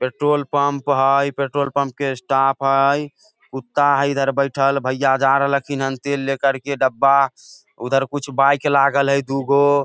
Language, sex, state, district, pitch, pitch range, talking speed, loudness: Maithili, male, Bihar, Samastipur, 140 Hz, 135-140 Hz, 165 wpm, -18 LUFS